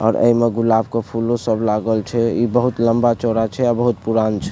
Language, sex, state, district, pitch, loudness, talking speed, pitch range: Maithili, male, Bihar, Supaul, 115 Hz, -18 LUFS, 225 wpm, 110-120 Hz